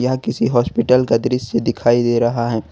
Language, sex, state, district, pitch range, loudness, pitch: Hindi, male, Jharkhand, Ranchi, 115-125 Hz, -17 LUFS, 120 Hz